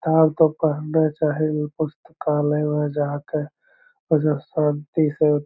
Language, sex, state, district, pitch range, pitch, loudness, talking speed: Magahi, male, Bihar, Lakhisarai, 150-155 Hz, 155 Hz, -22 LUFS, 145 wpm